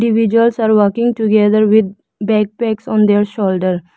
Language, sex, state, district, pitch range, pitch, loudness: English, female, Arunachal Pradesh, Lower Dibang Valley, 205-225 Hz, 215 Hz, -14 LUFS